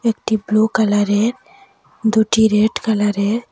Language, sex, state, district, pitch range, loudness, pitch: Bengali, female, Assam, Hailakandi, 210-225 Hz, -17 LUFS, 220 Hz